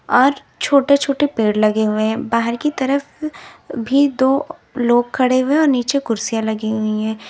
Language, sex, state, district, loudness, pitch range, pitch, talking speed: Hindi, female, Uttar Pradesh, Lalitpur, -17 LUFS, 225-280 Hz, 255 Hz, 175 wpm